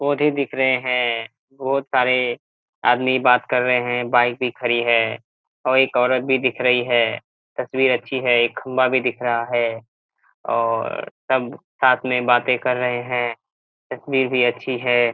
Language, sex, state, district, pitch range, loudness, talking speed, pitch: Hindi, male, Bihar, Kishanganj, 120-130 Hz, -19 LUFS, 170 wpm, 125 Hz